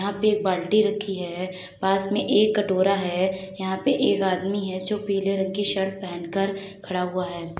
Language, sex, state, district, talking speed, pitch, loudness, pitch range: Hindi, female, Uttar Pradesh, Deoria, 205 wpm, 195 Hz, -24 LUFS, 185-200 Hz